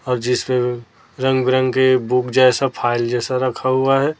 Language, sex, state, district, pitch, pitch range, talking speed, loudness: Hindi, female, Chhattisgarh, Raipur, 130 Hz, 125-130 Hz, 170 wpm, -17 LUFS